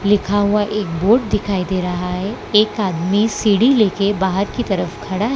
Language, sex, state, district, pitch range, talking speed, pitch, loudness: Hindi, female, Gujarat, Valsad, 190-210 Hz, 180 wpm, 205 Hz, -17 LUFS